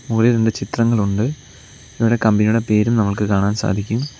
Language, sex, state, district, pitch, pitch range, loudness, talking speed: Malayalam, male, Kerala, Kollam, 110 Hz, 105-115 Hz, -18 LUFS, 130 wpm